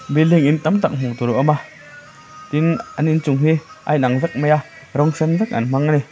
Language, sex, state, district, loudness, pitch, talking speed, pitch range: Mizo, male, Mizoram, Aizawl, -18 LUFS, 150 Hz, 245 wpm, 145-160 Hz